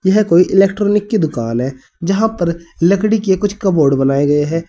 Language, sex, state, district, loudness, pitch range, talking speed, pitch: Hindi, male, Uttar Pradesh, Saharanpur, -14 LUFS, 150-205 Hz, 190 wpm, 180 Hz